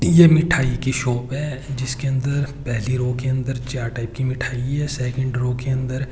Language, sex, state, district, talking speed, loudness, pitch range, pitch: Hindi, male, Rajasthan, Churu, 205 wpm, -21 LUFS, 125-135 Hz, 130 Hz